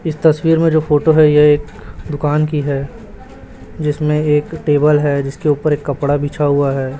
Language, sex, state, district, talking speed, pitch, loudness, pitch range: Hindi, male, Chhattisgarh, Raipur, 190 wpm, 150 Hz, -15 LUFS, 145-155 Hz